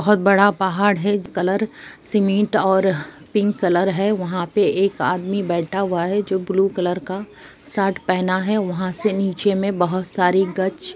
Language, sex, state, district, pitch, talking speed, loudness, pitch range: Hindi, female, Jharkhand, Sahebganj, 195 Hz, 170 wpm, -20 LUFS, 185-205 Hz